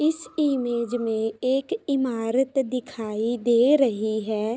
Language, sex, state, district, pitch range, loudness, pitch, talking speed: Hindi, female, Uttar Pradesh, Ghazipur, 225-270 Hz, -24 LUFS, 245 Hz, 120 wpm